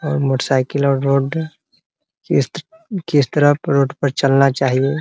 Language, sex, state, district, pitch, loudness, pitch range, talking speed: Hindi, male, Bihar, Muzaffarpur, 140 Hz, -17 LUFS, 135-150 Hz, 120 wpm